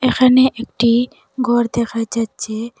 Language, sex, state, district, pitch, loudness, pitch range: Bengali, female, Assam, Hailakandi, 235 Hz, -17 LUFS, 230-250 Hz